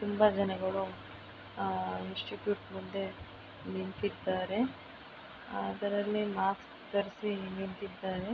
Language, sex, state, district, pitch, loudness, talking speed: Kannada, female, Karnataka, Mysore, 190 Hz, -35 LUFS, 85 wpm